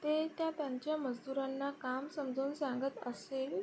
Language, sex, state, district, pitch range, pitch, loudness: Marathi, female, Maharashtra, Sindhudurg, 260-295 Hz, 275 Hz, -39 LUFS